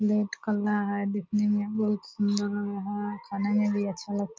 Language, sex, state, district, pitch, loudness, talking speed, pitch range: Hindi, female, Bihar, Purnia, 205 Hz, -29 LUFS, 220 wpm, 200-210 Hz